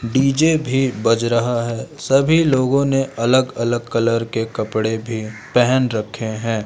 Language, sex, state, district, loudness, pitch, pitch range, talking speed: Hindi, male, Madhya Pradesh, Umaria, -18 LUFS, 120 Hz, 115-135 Hz, 155 wpm